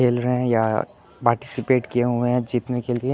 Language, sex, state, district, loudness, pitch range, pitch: Hindi, male, Chandigarh, Chandigarh, -22 LUFS, 120-125 Hz, 125 Hz